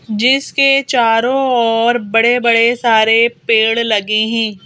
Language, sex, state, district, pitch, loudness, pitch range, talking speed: Hindi, female, Madhya Pradesh, Bhopal, 230 Hz, -12 LUFS, 225-245 Hz, 105 wpm